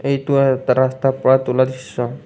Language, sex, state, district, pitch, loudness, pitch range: Assamese, male, Assam, Kamrup Metropolitan, 130 Hz, -17 LUFS, 130-135 Hz